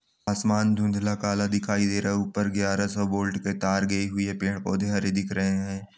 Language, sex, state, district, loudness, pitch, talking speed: Angika, male, Bihar, Samastipur, -26 LUFS, 100 Hz, 210 wpm